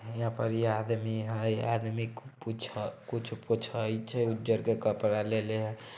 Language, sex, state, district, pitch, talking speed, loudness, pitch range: Maithili, male, Bihar, Samastipur, 115 Hz, 160 wpm, -32 LUFS, 110-115 Hz